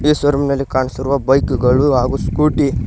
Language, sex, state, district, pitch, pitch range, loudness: Kannada, male, Karnataka, Koppal, 135 Hz, 130-145 Hz, -15 LUFS